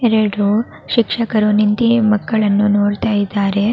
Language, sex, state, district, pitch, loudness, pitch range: Kannada, female, Karnataka, Raichur, 210 Hz, -15 LUFS, 205-225 Hz